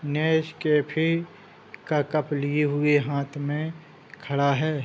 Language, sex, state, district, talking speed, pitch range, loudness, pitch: Hindi, male, Bihar, Gopalganj, 110 wpm, 145-160 Hz, -25 LUFS, 150 Hz